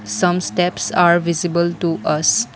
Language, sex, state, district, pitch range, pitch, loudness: English, female, Assam, Kamrup Metropolitan, 155-175 Hz, 170 Hz, -17 LUFS